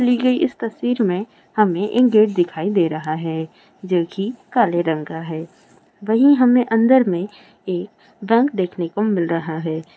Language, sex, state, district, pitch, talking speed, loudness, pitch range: Hindi, female, Rajasthan, Churu, 200 Hz, 175 wpm, -19 LUFS, 170-230 Hz